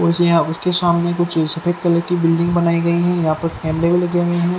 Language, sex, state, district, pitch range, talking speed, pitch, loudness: Hindi, female, Haryana, Charkhi Dadri, 165-175 Hz, 235 wpm, 170 Hz, -16 LUFS